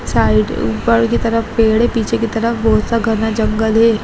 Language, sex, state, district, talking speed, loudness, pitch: Hindi, female, Bihar, Gaya, 225 wpm, -15 LUFS, 220 Hz